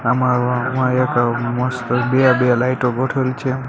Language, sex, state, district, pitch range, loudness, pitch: Gujarati, male, Gujarat, Gandhinagar, 125-130 Hz, -17 LUFS, 125 Hz